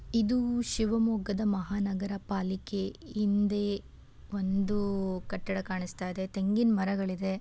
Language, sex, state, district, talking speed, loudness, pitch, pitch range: Kannada, female, Karnataka, Shimoga, 90 wpm, -31 LUFS, 200 Hz, 190-210 Hz